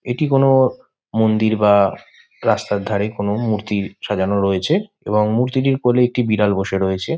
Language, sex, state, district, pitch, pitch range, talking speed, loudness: Bengali, male, West Bengal, Malda, 110 Hz, 100-125 Hz, 150 wpm, -18 LUFS